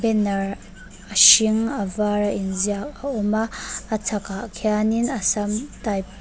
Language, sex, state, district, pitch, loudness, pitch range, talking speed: Mizo, female, Mizoram, Aizawl, 210 Hz, -21 LUFS, 195-220 Hz, 145 wpm